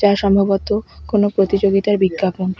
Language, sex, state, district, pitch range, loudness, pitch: Bengali, female, West Bengal, Alipurduar, 195-205 Hz, -17 LUFS, 200 Hz